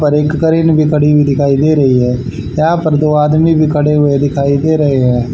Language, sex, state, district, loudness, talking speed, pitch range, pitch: Hindi, male, Haryana, Charkhi Dadri, -11 LUFS, 235 wpm, 140-155 Hz, 150 Hz